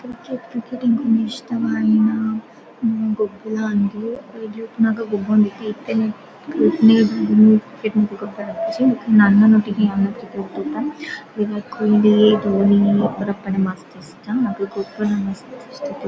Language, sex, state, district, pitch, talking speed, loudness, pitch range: Tulu, female, Karnataka, Dakshina Kannada, 220 Hz, 95 wpm, -18 LUFS, 210-235 Hz